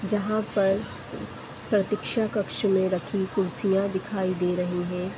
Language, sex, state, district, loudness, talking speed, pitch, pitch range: Hindi, female, Uttar Pradesh, Deoria, -26 LUFS, 130 wpm, 195 Hz, 185-210 Hz